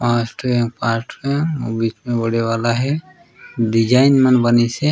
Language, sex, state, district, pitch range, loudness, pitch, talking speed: Chhattisgarhi, male, Chhattisgarh, Raigarh, 115-135 Hz, -17 LUFS, 120 Hz, 185 wpm